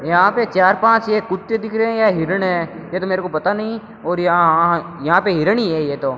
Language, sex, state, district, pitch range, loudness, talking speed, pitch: Hindi, male, Rajasthan, Bikaner, 170-215 Hz, -17 LUFS, 270 wpm, 185 Hz